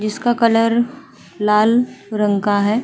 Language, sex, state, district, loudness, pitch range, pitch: Hindi, female, Uttar Pradesh, Hamirpur, -17 LUFS, 210-240 Hz, 225 Hz